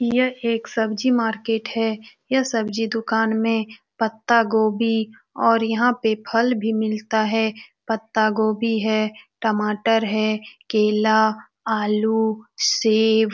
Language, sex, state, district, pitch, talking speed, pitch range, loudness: Hindi, female, Bihar, Saran, 220 Hz, 120 wpm, 220-230 Hz, -21 LUFS